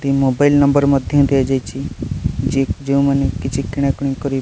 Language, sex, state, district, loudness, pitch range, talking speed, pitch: Odia, male, Odisha, Nuapada, -17 LUFS, 135-140 Hz, 135 wpm, 140 Hz